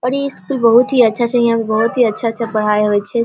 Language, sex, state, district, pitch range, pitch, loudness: Maithili, female, Bihar, Vaishali, 220-245 Hz, 235 Hz, -14 LUFS